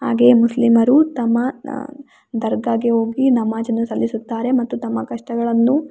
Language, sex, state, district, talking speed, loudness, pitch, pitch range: Kannada, female, Karnataka, Raichur, 100 wpm, -17 LUFS, 235 Hz, 230-255 Hz